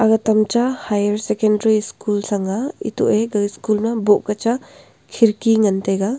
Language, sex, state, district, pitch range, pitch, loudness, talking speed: Wancho, female, Arunachal Pradesh, Longding, 205-225 Hz, 215 Hz, -18 LUFS, 165 wpm